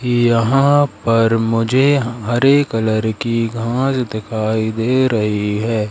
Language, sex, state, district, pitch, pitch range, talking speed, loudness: Hindi, male, Madhya Pradesh, Katni, 115 Hz, 110-125 Hz, 110 wpm, -16 LUFS